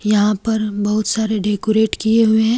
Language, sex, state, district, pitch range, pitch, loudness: Hindi, female, Jharkhand, Deoghar, 210-220 Hz, 215 Hz, -17 LUFS